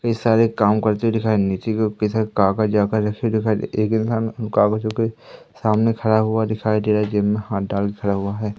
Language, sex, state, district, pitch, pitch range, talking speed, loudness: Hindi, male, Madhya Pradesh, Katni, 110 Hz, 105-110 Hz, 205 wpm, -20 LUFS